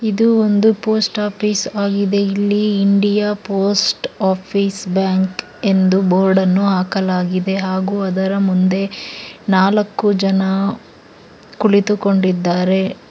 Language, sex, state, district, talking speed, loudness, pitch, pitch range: Kannada, female, Karnataka, Bangalore, 90 wpm, -16 LUFS, 195 Hz, 190-205 Hz